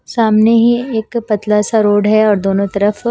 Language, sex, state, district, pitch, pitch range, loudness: Hindi, female, Himachal Pradesh, Shimla, 215 Hz, 205-230 Hz, -13 LUFS